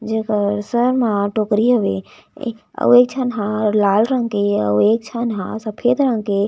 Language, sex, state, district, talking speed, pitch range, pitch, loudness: Chhattisgarhi, female, Chhattisgarh, Raigarh, 185 wpm, 205-240 Hz, 215 Hz, -18 LUFS